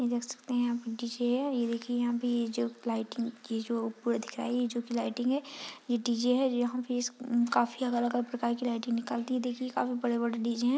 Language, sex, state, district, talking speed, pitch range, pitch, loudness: Hindi, female, Uttar Pradesh, Ghazipur, 235 wpm, 235-245 Hz, 240 Hz, -32 LUFS